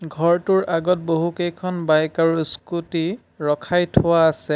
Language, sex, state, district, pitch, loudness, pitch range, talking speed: Assamese, male, Assam, Sonitpur, 170 Hz, -20 LUFS, 160-175 Hz, 120 wpm